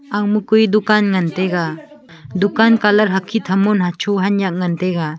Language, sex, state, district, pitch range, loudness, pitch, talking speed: Wancho, female, Arunachal Pradesh, Longding, 180-215 Hz, -16 LUFS, 200 Hz, 160 wpm